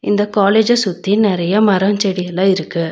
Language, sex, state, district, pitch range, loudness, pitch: Tamil, female, Tamil Nadu, Nilgiris, 185-205 Hz, -15 LUFS, 200 Hz